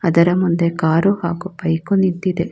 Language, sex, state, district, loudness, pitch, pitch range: Kannada, female, Karnataka, Bangalore, -17 LUFS, 175 Hz, 170-185 Hz